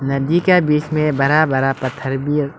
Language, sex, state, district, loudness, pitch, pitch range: Hindi, male, Arunachal Pradesh, Lower Dibang Valley, -17 LUFS, 145 Hz, 135-155 Hz